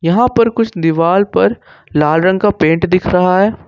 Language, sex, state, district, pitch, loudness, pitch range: Hindi, male, Jharkhand, Ranchi, 180 Hz, -13 LUFS, 165-205 Hz